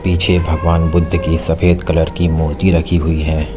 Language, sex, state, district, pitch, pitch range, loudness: Hindi, male, Uttar Pradesh, Lalitpur, 85 Hz, 80-90 Hz, -15 LUFS